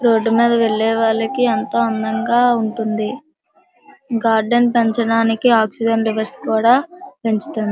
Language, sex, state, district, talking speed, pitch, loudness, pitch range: Telugu, female, Andhra Pradesh, Srikakulam, 100 wpm, 225 Hz, -17 LUFS, 220-240 Hz